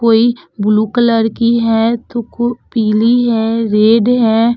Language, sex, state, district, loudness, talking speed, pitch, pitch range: Hindi, female, Uttar Pradesh, Budaun, -13 LUFS, 145 wpm, 230 Hz, 225-235 Hz